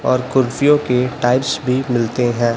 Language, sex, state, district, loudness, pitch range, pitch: Hindi, male, Chhattisgarh, Raipur, -17 LUFS, 120-130 Hz, 125 Hz